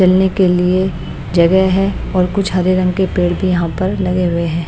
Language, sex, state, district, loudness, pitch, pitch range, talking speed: Hindi, female, Bihar, West Champaran, -15 LUFS, 185 Hz, 175-190 Hz, 220 wpm